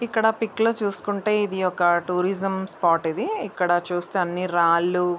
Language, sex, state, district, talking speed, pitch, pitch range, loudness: Telugu, female, Andhra Pradesh, Visakhapatnam, 175 wpm, 185 Hz, 175-210 Hz, -23 LUFS